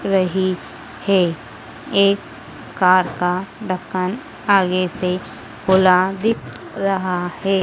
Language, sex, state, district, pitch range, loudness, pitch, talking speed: Hindi, female, Madhya Pradesh, Dhar, 180-195 Hz, -19 LUFS, 185 Hz, 95 wpm